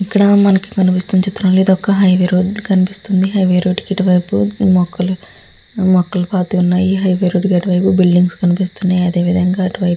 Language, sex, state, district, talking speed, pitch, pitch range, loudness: Telugu, female, Andhra Pradesh, Guntur, 155 wpm, 185 Hz, 180-195 Hz, -14 LUFS